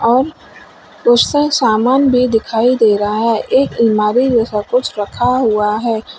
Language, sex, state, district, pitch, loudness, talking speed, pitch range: Hindi, female, Uttar Pradesh, Lalitpur, 235 Hz, -14 LUFS, 145 wpm, 220-255 Hz